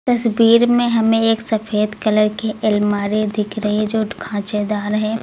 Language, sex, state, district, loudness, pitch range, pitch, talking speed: Hindi, female, Uttar Pradesh, Lucknow, -17 LUFS, 210-225 Hz, 215 Hz, 170 wpm